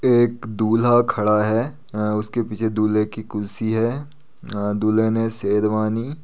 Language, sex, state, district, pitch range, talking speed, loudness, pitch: Hindi, male, Uttar Pradesh, Etah, 105-120 Hz, 155 wpm, -21 LUFS, 110 Hz